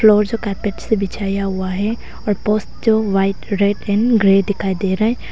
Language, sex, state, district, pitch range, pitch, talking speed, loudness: Hindi, female, Arunachal Pradesh, Longding, 195-215 Hz, 205 Hz, 205 wpm, -18 LUFS